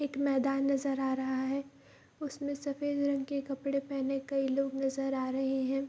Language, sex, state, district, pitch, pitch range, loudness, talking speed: Hindi, female, Bihar, Kishanganj, 275 Hz, 270-280 Hz, -33 LUFS, 185 wpm